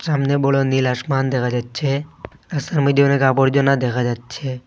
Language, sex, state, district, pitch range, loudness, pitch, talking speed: Bengali, male, Assam, Hailakandi, 125-140 Hz, -18 LUFS, 135 Hz, 155 wpm